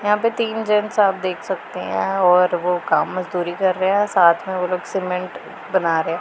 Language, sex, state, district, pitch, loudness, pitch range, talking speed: Hindi, female, Punjab, Pathankot, 185 Hz, -19 LUFS, 180-200 Hz, 220 wpm